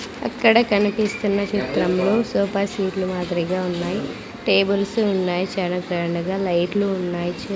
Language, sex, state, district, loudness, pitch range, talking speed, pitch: Telugu, female, Andhra Pradesh, Sri Satya Sai, -21 LUFS, 180-205 Hz, 110 wpm, 190 Hz